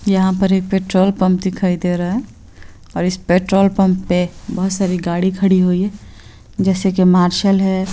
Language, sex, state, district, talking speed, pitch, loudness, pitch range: Hindi, female, Bihar, Purnia, 175 wpm, 185 Hz, -16 LUFS, 180-195 Hz